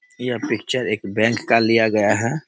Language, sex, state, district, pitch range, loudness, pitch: Hindi, male, Bihar, Muzaffarpur, 105-115 Hz, -19 LUFS, 115 Hz